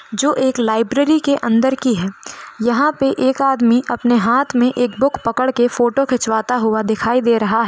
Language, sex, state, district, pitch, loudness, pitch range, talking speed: Hindi, female, Rajasthan, Nagaur, 245 Hz, -16 LUFS, 230-265 Hz, 195 wpm